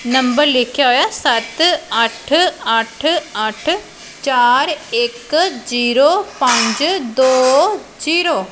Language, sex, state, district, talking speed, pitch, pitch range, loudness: Punjabi, female, Punjab, Pathankot, 100 wpm, 265 Hz, 240-320 Hz, -15 LUFS